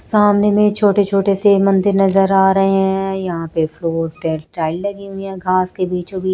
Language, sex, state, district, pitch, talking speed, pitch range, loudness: Hindi, female, Chhattisgarh, Raipur, 195 Hz, 210 wpm, 180-200 Hz, -16 LUFS